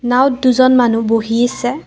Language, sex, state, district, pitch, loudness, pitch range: Assamese, female, Assam, Kamrup Metropolitan, 245 Hz, -13 LUFS, 235-255 Hz